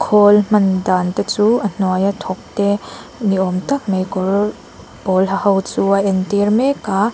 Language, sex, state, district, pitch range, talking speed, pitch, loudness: Mizo, female, Mizoram, Aizawl, 190-210 Hz, 195 wpm, 200 Hz, -16 LUFS